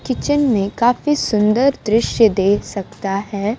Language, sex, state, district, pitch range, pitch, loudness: Hindi, female, Bihar, Kaimur, 200-245 Hz, 215 Hz, -17 LUFS